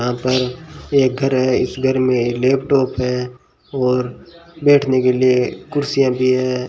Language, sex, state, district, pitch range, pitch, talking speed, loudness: Hindi, male, Rajasthan, Bikaner, 125-135 Hz, 130 Hz, 150 wpm, -17 LUFS